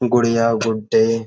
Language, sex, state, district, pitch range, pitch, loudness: Hindi, male, Uttar Pradesh, Budaun, 110-115 Hz, 115 Hz, -17 LUFS